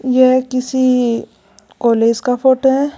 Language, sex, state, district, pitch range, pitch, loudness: Hindi, female, Rajasthan, Jaipur, 245-260 Hz, 255 Hz, -14 LUFS